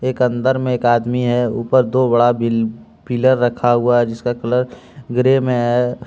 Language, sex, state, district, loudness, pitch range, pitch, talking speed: Hindi, male, Jharkhand, Deoghar, -16 LUFS, 120-125 Hz, 120 Hz, 185 wpm